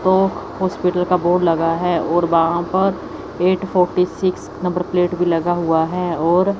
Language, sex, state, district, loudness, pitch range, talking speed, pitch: Hindi, female, Chandigarh, Chandigarh, -18 LUFS, 170-185 Hz, 175 wpm, 180 Hz